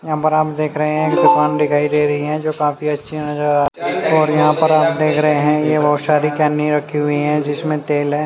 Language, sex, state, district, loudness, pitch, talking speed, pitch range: Hindi, male, Haryana, Charkhi Dadri, -16 LUFS, 150 Hz, 190 wpm, 150-155 Hz